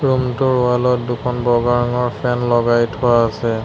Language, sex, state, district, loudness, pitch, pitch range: Assamese, male, Assam, Sonitpur, -17 LUFS, 120 Hz, 120-125 Hz